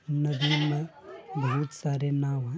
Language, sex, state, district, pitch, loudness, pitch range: Hindi, male, Bihar, Madhepura, 145 Hz, -28 LUFS, 140-150 Hz